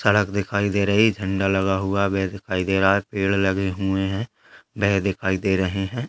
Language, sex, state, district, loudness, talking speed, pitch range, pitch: Hindi, male, Bihar, Jamui, -22 LUFS, 225 wpm, 95-100 Hz, 95 Hz